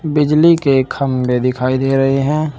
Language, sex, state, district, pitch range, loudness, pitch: Hindi, male, Uttar Pradesh, Saharanpur, 130-150 Hz, -14 LUFS, 135 Hz